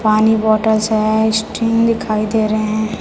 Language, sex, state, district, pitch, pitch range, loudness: Hindi, female, Chhattisgarh, Raipur, 220 Hz, 215-220 Hz, -15 LUFS